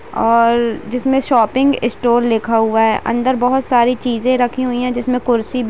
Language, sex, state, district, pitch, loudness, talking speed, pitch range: Hindi, female, Bihar, East Champaran, 245 Hz, -15 LUFS, 190 wpm, 230-250 Hz